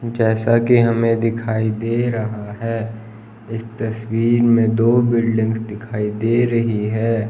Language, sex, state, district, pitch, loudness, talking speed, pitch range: Hindi, male, Himachal Pradesh, Shimla, 115 Hz, -18 LUFS, 130 wpm, 110-115 Hz